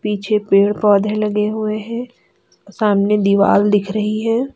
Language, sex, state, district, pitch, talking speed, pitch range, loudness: Hindi, female, Uttar Pradesh, Lalitpur, 210 Hz, 145 wpm, 205-215 Hz, -16 LUFS